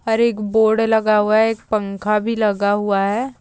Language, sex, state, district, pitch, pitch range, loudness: Hindi, female, Uttar Pradesh, Jyotiba Phule Nagar, 215 Hz, 205-225 Hz, -17 LUFS